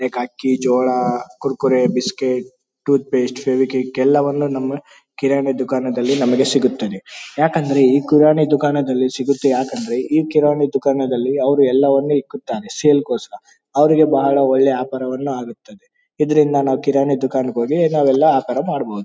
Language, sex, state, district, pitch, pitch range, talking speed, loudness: Kannada, male, Karnataka, Bellary, 135 Hz, 130-145 Hz, 140 wpm, -17 LUFS